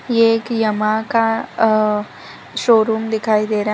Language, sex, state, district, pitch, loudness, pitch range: Hindi, female, Gujarat, Valsad, 220 Hz, -17 LUFS, 215-225 Hz